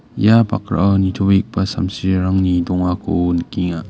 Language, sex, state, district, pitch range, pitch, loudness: Garo, male, Meghalaya, West Garo Hills, 90-100 Hz, 95 Hz, -17 LUFS